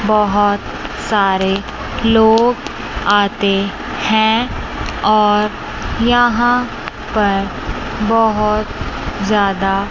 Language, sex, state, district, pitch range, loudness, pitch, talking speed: Hindi, male, Chandigarh, Chandigarh, 200-225 Hz, -15 LUFS, 210 Hz, 60 wpm